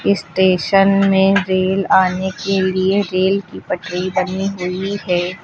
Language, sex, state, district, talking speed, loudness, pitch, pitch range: Hindi, female, Uttar Pradesh, Lucknow, 130 wpm, -16 LUFS, 190 Hz, 185-195 Hz